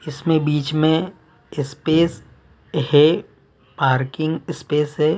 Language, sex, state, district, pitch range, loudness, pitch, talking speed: Hindi, male, Uttar Pradesh, Muzaffarnagar, 145-160 Hz, -19 LUFS, 150 Hz, 95 wpm